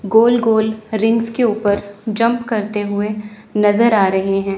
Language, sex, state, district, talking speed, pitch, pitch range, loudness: Hindi, female, Chandigarh, Chandigarh, 155 wpm, 215 Hz, 205-225 Hz, -16 LUFS